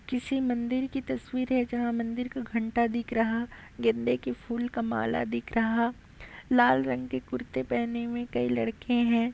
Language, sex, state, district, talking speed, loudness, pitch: Hindi, female, Chhattisgarh, Raigarh, 175 wpm, -29 LUFS, 230 Hz